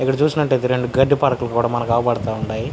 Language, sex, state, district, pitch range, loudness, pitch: Telugu, male, Andhra Pradesh, Anantapur, 120-135 Hz, -19 LUFS, 125 Hz